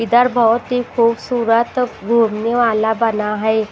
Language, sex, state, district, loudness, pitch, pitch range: Hindi, female, Maharashtra, Washim, -16 LUFS, 230 Hz, 220-240 Hz